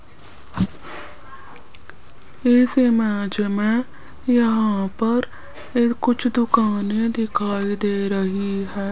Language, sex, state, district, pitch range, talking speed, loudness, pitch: Hindi, female, Rajasthan, Jaipur, 200-240 Hz, 80 wpm, -21 LUFS, 220 Hz